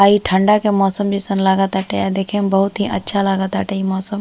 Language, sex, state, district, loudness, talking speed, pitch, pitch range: Bhojpuri, female, Uttar Pradesh, Ghazipur, -17 LUFS, 230 wpm, 195 Hz, 190-205 Hz